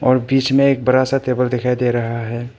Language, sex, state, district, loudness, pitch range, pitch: Hindi, male, Arunachal Pradesh, Papum Pare, -17 LUFS, 120-130 Hz, 125 Hz